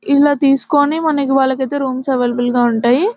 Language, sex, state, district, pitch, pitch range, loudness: Telugu, female, Telangana, Nalgonda, 270 Hz, 255-285 Hz, -15 LUFS